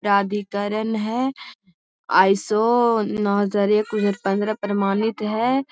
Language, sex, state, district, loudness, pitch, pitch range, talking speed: Magahi, female, Bihar, Gaya, -21 LUFS, 210 Hz, 200-225 Hz, 50 wpm